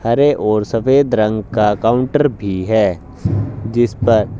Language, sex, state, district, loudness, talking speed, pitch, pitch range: Hindi, male, Haryana, Jhajjar, -16 LUFS, 135 wpm, 110 Hz, 105-125 Hz